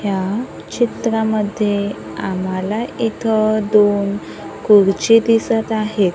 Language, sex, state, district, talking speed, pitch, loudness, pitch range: Marathi, female, Maharashtra, Gondia, 80 wpm, 215 Hz, -17 LUFS, 200-225 Hz